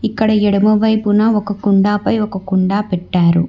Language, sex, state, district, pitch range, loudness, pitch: Telugu, female, Telangana, Hyderabad, 190-215 Hz, -14 LUFS, 205 Hz